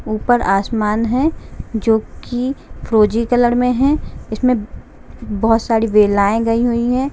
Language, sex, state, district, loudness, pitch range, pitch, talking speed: Hindi, female, Jharkhand, Jamtara, -16 LUFS, 215-245 Hz, 230 Hz, 135 wpm